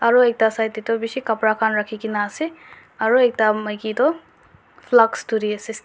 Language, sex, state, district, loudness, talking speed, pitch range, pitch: Nagamese, female, Nagaland, Dimapur, -20 LUFS, 175 wpm, 215-240 Hz, 220 Hz